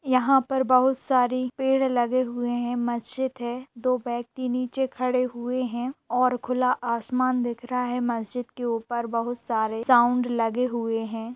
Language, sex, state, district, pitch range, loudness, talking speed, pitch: Hindi, female, Bihar, Sitamarhi, 240-255 Hz, -25 LUFS, 165 wpm, 245 Hz